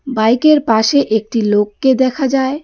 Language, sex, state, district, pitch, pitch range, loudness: Bengali, female, West Bengal, Darjeeling, 260 Hz, 220-270 Hz, -13 LUFS